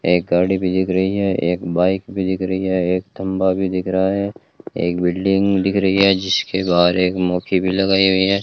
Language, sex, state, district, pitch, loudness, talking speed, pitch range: Hindi, male, Rajasthan, Bikaner, 95 Hz, -18 LUFS, 220 wpm, 90-95 Hz